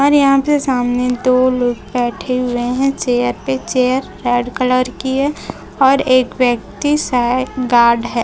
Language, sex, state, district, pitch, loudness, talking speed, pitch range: Hindi, female, Chhattisgarh, Raipur, 255 Hz, -15 LUFS, 160 wpm, 245-265 Hz